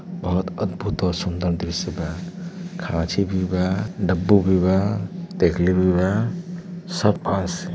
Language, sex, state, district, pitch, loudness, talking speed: Bhojpuri, male, Uttar Pradesh, Deoria, 95 Hz, -22 LUFS, 140 wpm